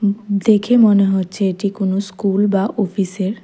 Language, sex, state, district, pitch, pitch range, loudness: Bengali, female, Tripura, West Tripura, 200 Hz, 195-205 Hz, -16 LUFS